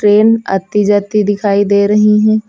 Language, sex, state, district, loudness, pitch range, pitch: Hindi, female, Uttar Pradesh, Lucknow, -11 LUFS, 200-210 Hz, 205 Hz